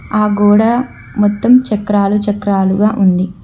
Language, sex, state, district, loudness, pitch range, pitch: Telugu, female, Telangana, Hyderabad, -12 LUFS, 200-215 Hz, 205 Hz